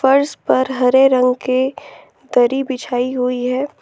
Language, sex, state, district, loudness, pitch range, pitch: Hindi, female, Jharkhand, Ranchi, -16 LUFS, 250-270 Hz, 260 Hz